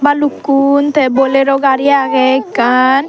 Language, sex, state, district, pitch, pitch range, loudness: Chakma, female, Tripura, Dhalai, 275 Hz, 265-285 Hz, -11 LUFS